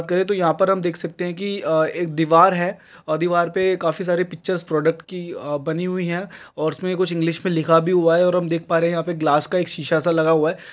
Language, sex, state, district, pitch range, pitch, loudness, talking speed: Hindi, male, Chhattisgarh, Kabirdham, 160-180 Hz, 170 Hz, -20 LUFS, 265 wpm